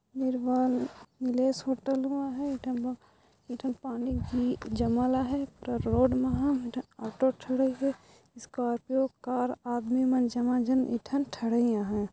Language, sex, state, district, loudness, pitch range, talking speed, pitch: Sadri, female, Chhattisgarh, Jashpur, -30 LUFS, 245-265 Hz, 115 wpm, 255 Hz